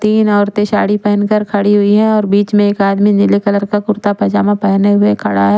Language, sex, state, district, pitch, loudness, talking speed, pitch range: Hindi, female, Chandigarh, Chandigarh, 205 Hz, -12 LUFS, 245 wpm, 200-210 Hz